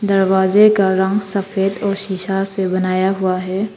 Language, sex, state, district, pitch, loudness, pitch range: Hindi, female, Arunachal Pradesh, Papum Pare, 195 Hz, -16 LUFS, 190-200 Hz